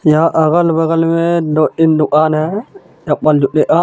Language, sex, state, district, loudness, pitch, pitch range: Hindi, male, Jharkhand, Deoghar, -13 LUFS, 160 Hz, 155-165 Hz